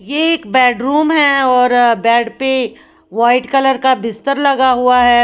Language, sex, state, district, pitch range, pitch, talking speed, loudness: Hindi, female, Bihar, Patna, 240-275 Hz, 255 Hz, 170 wpm, -12 LUFS